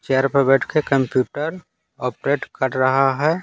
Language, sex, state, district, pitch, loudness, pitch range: Hindi, male, Bihar, Patna, 135 Hz, -20 LUFS, 130-145 Hz